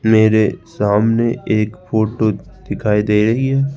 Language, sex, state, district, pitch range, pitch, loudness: Hindi, male, Rajasthan, Jaipur, 105-115 Hz, 110 Hz, -16 LUFS